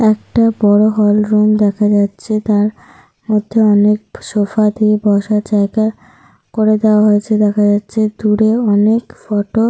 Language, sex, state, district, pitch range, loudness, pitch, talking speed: Bengali, female, Jharkhand, Sahebganj, 205-215 Hz, -13 LUFS, 210 Hz, 135 wpm